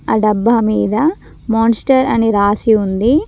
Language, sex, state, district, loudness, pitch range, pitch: Telugu, female, Telangana, Mahabubabad, -14 LUFS, 215-245 Hz, 225 Hz